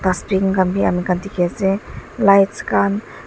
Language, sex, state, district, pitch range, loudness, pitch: Nagamese, female, Nagaland, Dimapur, 185-200 Hz, -18 LUFS, 195 Hz